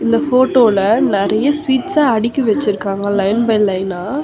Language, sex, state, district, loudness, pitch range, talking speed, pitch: Tamil, female, Tamil Nadu, Chennai, -14 LUFS, 200-260 Hz, 140 wpm, 225 Hz